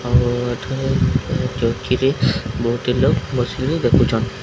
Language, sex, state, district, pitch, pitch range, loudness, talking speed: Odia, male, Odisha, Sambalpur, 125 Hz, 120-135 Hz, -19 LUFS, 110 wpm